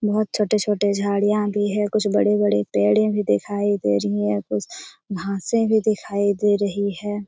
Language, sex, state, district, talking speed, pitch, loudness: Hindi, female, Bihar, Jamui, 165 wpm, 200 Hz, -21 LUFS